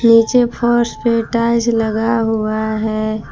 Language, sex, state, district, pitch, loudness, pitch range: Hindi, female, Jharkhand, Palamu, 225 Hz, -16 LUFS, 220-235 Hz